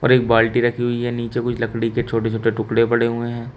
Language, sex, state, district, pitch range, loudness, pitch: Hindi, male, Uttar Pradesh, Shamli, 115-120 Hz, -19 LUFS, 120 Hz